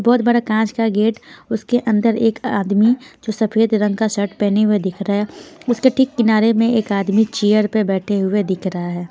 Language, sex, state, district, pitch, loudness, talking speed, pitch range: Hindi, female, Punjab, Pathankot, 220 Hz, -17 LUFS, 210 wpm, 205-230 Hz